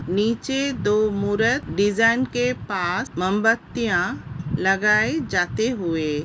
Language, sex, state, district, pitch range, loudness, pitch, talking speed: Hindi, female, Uttar Pradesh, Hamirpur, 180-235 Hz, -22 LUFS, 210 Hz, 95 wpm